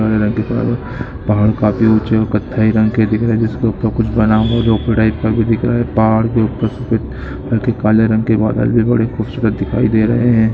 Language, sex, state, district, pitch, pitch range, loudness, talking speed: Hindi, male, Andhra Pradesh, Guntur, 110 Hz, 110-115 Hz, -15 LUFS, 215 wpm